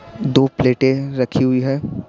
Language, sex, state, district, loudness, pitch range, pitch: Hindi, male, Bihar, Patna, -17 LUFS, 130-135 Hz, 130 Hz